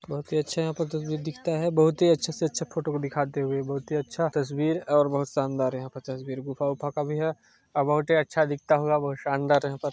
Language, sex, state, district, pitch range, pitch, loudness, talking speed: Hindi, male, Chhattisgarh, Sarguja, 140-160 Hz, 145 Hz, -27 LUFS, 250 wpm